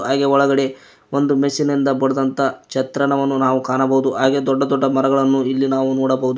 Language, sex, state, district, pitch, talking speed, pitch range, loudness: Kannada, male, Karnataka, Koppal, 135 Hz, 160 wpm, 130-140 Hz, -17 LUFS